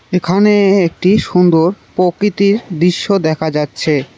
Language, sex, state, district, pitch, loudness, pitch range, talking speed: Bengali, male, West Bengal, Cooch Behar, 180 Hz, -13 LUFS, 165-200 Hz, 100 wpm